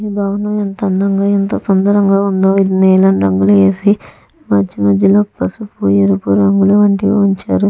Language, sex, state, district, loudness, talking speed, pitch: Telugu, female, Andhra Pradesh, Chittoor, -12 LUFS, 155 wpm, 195 Hz